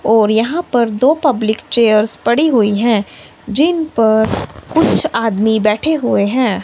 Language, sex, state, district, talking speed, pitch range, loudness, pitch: Hindi, male, Himachal Pradesh, Shimla, 145 wpm, 215-260 Hz, -14 LUFS, 225 Hz